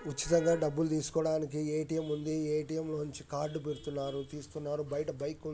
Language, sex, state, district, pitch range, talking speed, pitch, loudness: Telugu, male, Andhra Pradesh, Anantapur, 150-155 Hz, 150 wpm, 150 Hz, -34 LUFS